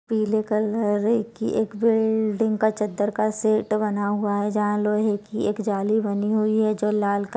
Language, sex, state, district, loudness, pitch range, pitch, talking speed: Hindi, female, Chhattisgarh, Balrampur, -23 LUFS, 210-220 Hz, 215 Hz, 185 wpm